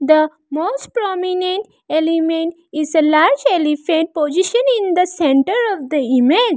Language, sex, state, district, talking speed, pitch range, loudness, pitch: English, female, Arunachal Pradesh, Lower Dibang Valley, 135 wpm, 305-370 Hz, -16 LUFS, 325 Hz